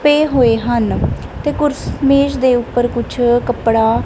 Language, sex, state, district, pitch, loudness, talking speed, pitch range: Punjabi, male, Punjab, Kapurthala, 245 Hz, -15 LUFS, 150 wpm, 240-280 Hz